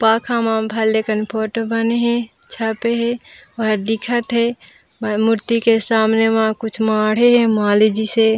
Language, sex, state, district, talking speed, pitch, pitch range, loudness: Chhattisgarhi, female, Chhattisgarh, Raigarh, 160 wpm, 225 Hz, 220-235 Hz, -17 LUFS